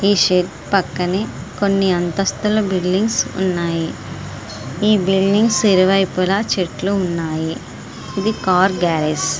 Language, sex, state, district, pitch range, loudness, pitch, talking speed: Telugu, female, Andhra Pradesh, Srikakulam, 180-200 Hz, -17 LUFS, 190 Hz, 110 wpm